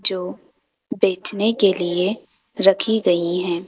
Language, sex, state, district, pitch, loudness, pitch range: Hindi, female, Madhya Pradesh, Bhopal, 190 Hz, -19 LUFS, 180-205 Hz